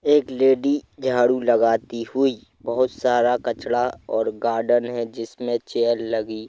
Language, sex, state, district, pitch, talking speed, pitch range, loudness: Hindi, male, Chhattisgarh, Rajnandgaon, 120 Hz, 130 wpm, 115-130 Hz, -22 LUFS